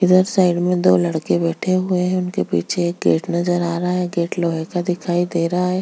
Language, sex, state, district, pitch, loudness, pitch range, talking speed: Hindi, female, Chhattisgarh, Jashpur, 175 Hz, -19 LUFS, 170-180 Hz, 225 wpm